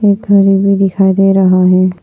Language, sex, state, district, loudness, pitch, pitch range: Hindi, female, Arunachal Pradesh, Papum Pare, -10 LUFS, 195 Hz, 185-195 Hz